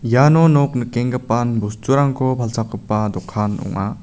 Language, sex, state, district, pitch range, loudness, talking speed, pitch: Garo, male, Meghalaya, South Garo Hills, 105-130 Hz, -18 LUFS, 105 wpm, 120 Hz